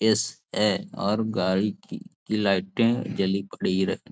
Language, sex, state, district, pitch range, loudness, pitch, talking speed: Hindi, male, Bihar, Jahanabad, 95-110 Hz, -25 LUFS, 100 Hz, 130 wpm